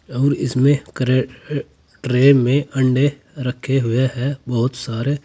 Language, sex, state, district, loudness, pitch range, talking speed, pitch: Hindi, male, Uttar Pradesh, Saharanpur, -19 LUFS, 125-140 Hz, 125 wpm, 130 Hz